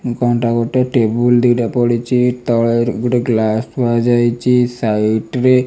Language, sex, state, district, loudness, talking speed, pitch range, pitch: Odia, male, Odisha, Malkangiri, -15 LUFS, 160 wpm, 115-125 Hz, 120 Hz